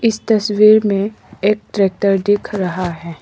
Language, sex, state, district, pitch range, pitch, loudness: Hindi, female, Arunachal Pradesh, Lower Dibang Valley, 190-215 Hz, 205 Hz, -16 LUFS